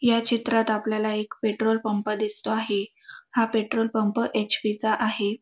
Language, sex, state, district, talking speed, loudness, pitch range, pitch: Marathi, female, Maharashtra, Dhule, 145 wpm, -25 LUFS, 215-225 Hz, 220 Hz